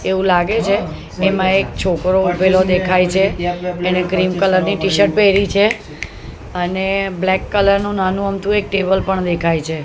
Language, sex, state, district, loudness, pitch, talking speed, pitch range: Gujarati, female, Gujarat, Gandhinagar, -16 LUFS, 190 Hz, 165 wpm, 180-195 Hz